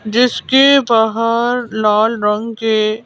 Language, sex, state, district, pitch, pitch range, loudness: Hindi, female, Madhya Pradesh, Bhopal, 225 Hz, 215-240 Hz, -14 LUFS